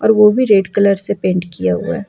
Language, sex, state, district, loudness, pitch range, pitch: Hindi, female, Jharkhand, Ranchi, -14 LUFS, 180-210 Hz, 200 Hz